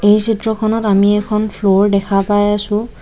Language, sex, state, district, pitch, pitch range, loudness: Assamese, female, Assam, Kamrup Metropolitan, 205 Hz, 200-215 Hz, -14 LUFS